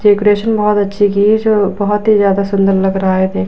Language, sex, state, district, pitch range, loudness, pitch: Hindi, female, Uttar Pradesh, Budaun, 195-210 Hz, -12 LUFS, 205 Hz